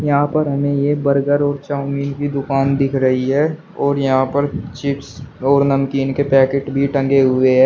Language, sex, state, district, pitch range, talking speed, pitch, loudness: Hindi, male, Uttar Pradesh, Shamli, 135-145 Hz, 190 wpm, 140 Hz, -17 LUFS